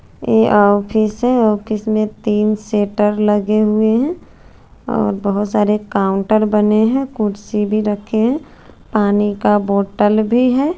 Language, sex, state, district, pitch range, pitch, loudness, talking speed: Hindi, female, Chandigarh, Chandigarh, 210-220 Hz, 210 Hz, -16 LUFS, 140 wpm